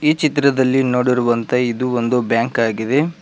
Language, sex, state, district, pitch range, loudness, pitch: Kannada, male, Karnataka, Koppal, 120-140 Hz, -17 LUFS, 125 Hz